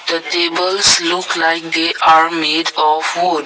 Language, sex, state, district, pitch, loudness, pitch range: English, male, Assam, Kamrup Metropolitan, 165 Hz, -13 LUFS, 160-165 Hz